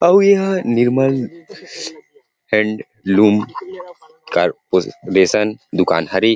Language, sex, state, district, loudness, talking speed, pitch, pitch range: Chhattisgarhi, male, Chhattisgarh, Rajnandgaon, -16 LUFS, 95 wpm, 120 Hz, 105-175 Hz